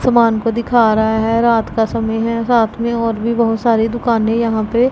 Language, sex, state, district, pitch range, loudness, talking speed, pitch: Hindi, female, Punjab, Pathankot, 225-235 Hz, -15 LUFS, 220 wpm, 230 Hz